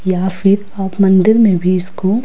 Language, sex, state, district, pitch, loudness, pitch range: Hindi, female, Himachal Pradesh, Shimla, 195 Hz, -13 LUFS, 185-200 Hz